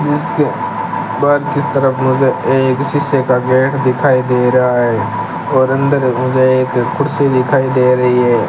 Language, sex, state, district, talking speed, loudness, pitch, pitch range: Hindi, male, Rajasthan, Bikaner, 155 wpm, -13 LUFS, 130 Hz, 125-135 Hz